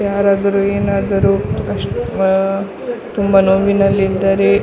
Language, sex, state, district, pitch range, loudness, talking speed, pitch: Kannada, female, Karnataka, Dakshina Kannada, 195-200 Hz, -15 LUFS, 90 wpm, 195 Hz